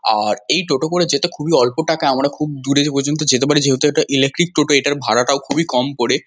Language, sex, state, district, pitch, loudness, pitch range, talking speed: Bengali, male, West Bengal, Kolkata, 145 Hz, -16 LUFS, 135-155 Hz, 220 wpm